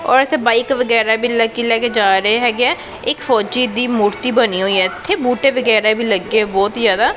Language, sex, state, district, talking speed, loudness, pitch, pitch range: Punjabi, female, Punjab, Pathankot, 225 wpm, -15 LUFS, 230 Hz, 210-245 Hz